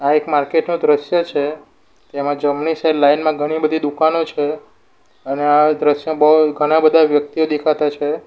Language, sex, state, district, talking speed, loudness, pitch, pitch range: Gujarati, male, Gujarat, Valsad, 175 wpm, -16 LUFS, 150 Hz, 145-155 Hz